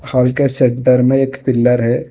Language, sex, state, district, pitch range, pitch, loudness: Hindi, female, Telangana, Hyderabad, 125-135 Hz, 125 Hz, -13 LUFS